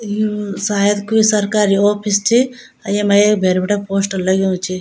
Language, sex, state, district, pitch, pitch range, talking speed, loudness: Garhwali, female, Uttarakhand, Tehri Garhwal, 205 Hz, 195-210 Hz, 175 wpm, -15 LUFS